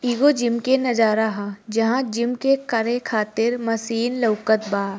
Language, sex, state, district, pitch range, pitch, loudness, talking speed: Bhojpuri, female, Bihar, Gopalganj, 220-245 Hz, 230 Hz, -21 LUFS, 155 wpm